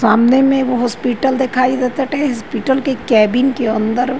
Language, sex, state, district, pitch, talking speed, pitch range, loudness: Bhojpuri, female, Uttar Pradesh, Ghazipur, 255 Hz, 185 wpm, 240-265 Hz, -15 LUFS